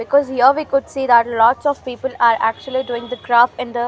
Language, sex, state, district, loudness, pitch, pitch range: English, female, Haryana, Rohtak, -16 LUFS, 250 Hz, 235-265 Hz